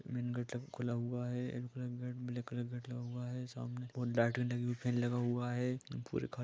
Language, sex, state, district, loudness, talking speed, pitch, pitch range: Hindi, male, Jharkhand, Sahebganj, -39 LUFS, 215 wpm, 125 Hz, 120-125 Hz